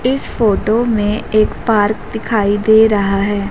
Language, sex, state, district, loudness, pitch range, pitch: Hindi, female, Haryana, Jhajjar, -14 LUFS, 205-225 Hz, 215 Hz